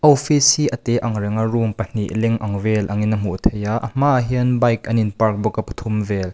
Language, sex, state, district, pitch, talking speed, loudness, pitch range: Mizo, male, Mizoram, Aizawl, 110 Hz, 255 wpm, -19 LUFS, 105-120 Hz